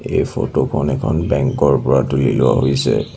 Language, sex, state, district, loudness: Assamese, male, Assam, Sonitpur, -16 LUFS